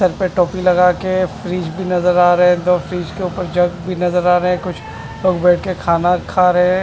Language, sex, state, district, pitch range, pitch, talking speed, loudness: Hindi, male, Punjab, Fazilka, 180-185 Hz, 180 Hz, 255 wpm, -16 LUFS